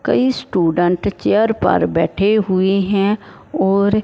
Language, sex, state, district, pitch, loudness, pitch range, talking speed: Hindi, male, Punjab, Fazilka, 195 Hz, -16 LUFS, 185-210 Hz, 135 wpm